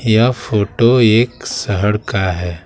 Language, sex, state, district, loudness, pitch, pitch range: Hindi, male, Bihar, Patna, -15 LUFS, 110 Hz, 100-120 Hz